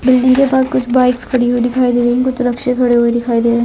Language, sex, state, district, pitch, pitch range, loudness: Hindi, female, Rajasthan, Nagaur, 250 Hz, 240-255 Hz, -13 LUFS